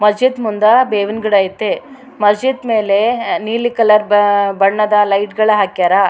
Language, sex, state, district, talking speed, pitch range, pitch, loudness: Kannada, female, Karnataka, Raichur, 140 wpm, 205-230 Hz, 210 Hz, -14 LUFS